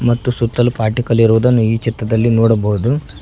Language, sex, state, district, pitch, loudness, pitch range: Kannada, male, Karnataka, Koppal, 115 Hz, -14 LUFS, 110-120 Hz